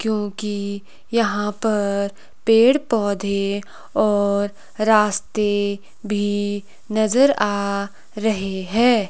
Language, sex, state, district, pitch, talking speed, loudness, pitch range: Hindi, female, Himachal Pradesh, Shimla, 205 Hz, 80 wpm, -20 LUFS, 200-220 Hz